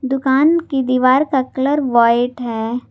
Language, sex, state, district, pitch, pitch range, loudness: Hindi, female, Jharkhand, Garhwa, 260 Hz, 245-270 Hz, -16 LUFS